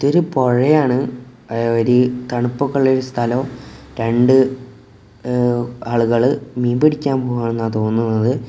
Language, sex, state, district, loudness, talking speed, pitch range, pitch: Malayalam, male, Kerala, Kozhikode, -17 LUFS, 115 wpm, 120-130 Hz, 125 Hz